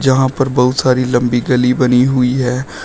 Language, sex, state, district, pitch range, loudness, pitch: Hindi, male, Uttar Pradesh, Shamli, 125-130 Hz, -13 LUFS, 125 Hz